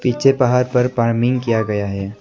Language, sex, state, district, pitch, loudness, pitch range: Hindi, male, Arunachal Pradesh, Lower Dibang Valley, 120 Hz, -17 LUFS, 105-125 Hz